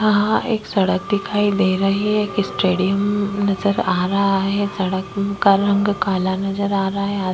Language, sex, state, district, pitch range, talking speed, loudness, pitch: Hindi, female, Uttar Pradesh, Jyotiba Phule Nagar, 195-200 Hz, 170 wpm, -19 LUFS, 200 Hz